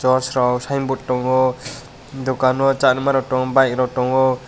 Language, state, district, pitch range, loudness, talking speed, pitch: Kokborok, Tripura, West Tripura, 130-135 Hz, -18 LUFS, 160 wpm, 130 Hz